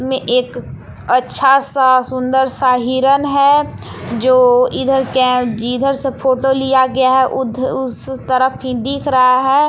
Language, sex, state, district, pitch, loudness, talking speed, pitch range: Hindi, female, Jharkhand, Palamu, 260 Hz, -14 LUFS, 150 wpm, 255-270 Hz